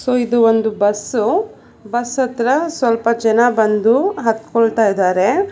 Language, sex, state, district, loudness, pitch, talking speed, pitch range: Kannada, female, Karnataka, Bangalore, -16 LUFS, 230 Hz, 110 wpm, 220-250 Hz